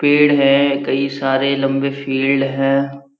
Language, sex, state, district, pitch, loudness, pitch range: Hindi, male, Uttarakhand, Uttarkashi, 140 Hz, -16 LUFS, 135-140 Hz